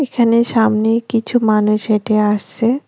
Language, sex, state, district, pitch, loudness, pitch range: Bengali, female, West Bengal, Cooch Behar, 225 Hz, -15 LUFS, 215-235 Hz